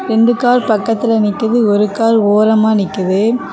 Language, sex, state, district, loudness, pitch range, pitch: Tamil, female, Tamil Nadu, Kanyakumari, -13 LUFS, 205-230 Hz, 220 Hz